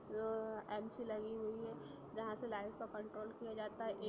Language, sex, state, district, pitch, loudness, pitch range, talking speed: Hindi, female, Bihar, Sitamarhi, 215 Hz, -46 LUFS, 210-220 Hz, 205 wpm